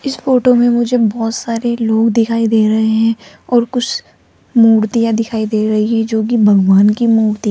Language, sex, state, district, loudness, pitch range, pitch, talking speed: Hindi, female, Rajasthan, Jaipur, -13 LUFS, 220-235 Hz, 225 Hz, 190 wpm